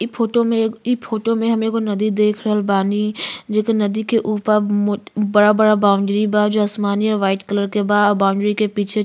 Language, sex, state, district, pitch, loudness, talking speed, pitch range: Bhojpuri, female, Uttar Pradesh, Gorakhpur, 210 Hz, -17 LUFS, 230 wpm, 205-220 Hz